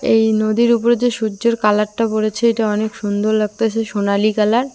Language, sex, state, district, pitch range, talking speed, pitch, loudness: Bengali, female, West Bengal, Cooch Behar, 210-230 Hz, 175 wpm, 220 Hz, -17 LUFS